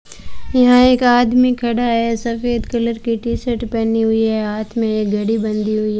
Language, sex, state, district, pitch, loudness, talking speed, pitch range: Hindi, female, Rajasthan, Bikaner, 230 Hz, -16 LUFS, 200 wpm, 220-240 Hz